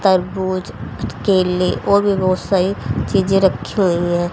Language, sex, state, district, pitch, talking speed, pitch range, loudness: Hindi, female, Haryana, Jhajjar, 185 Hz, 140 wpm, 175-195 Hz, -17 LUFS